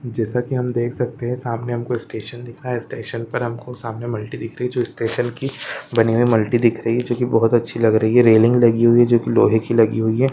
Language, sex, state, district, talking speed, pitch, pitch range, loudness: Hindi, male, Maharashtra, Solapur, 265 wpm, 120 Hz, 115-120 Hz, -18 LUFS